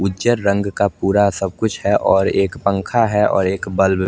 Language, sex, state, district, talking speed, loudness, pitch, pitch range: Hindi, male, Chandigarh, Chandigarh, 220 wpm, -17 LUFS, 100 Hz, 95-105 Hz